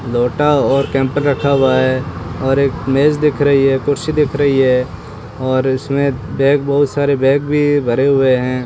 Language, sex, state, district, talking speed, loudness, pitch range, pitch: Hindi, male, Rajasthan, Bikaner, 180 wpm, -14 LUFS, 130-145 Hz, 135 Hz